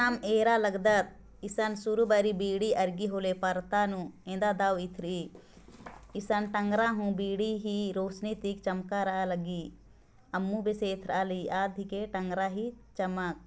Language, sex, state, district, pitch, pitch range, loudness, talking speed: Sadri, female, Chhattisgarh, Jashpur, 200 Hz, 185-210 Hz, -31 LUFS, 135 wpm